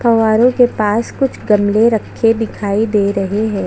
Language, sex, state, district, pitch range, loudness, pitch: Hindi, female, Chhattisgarh, Jashpur, 205-230 Hz, -14 LUFS, 220 Hz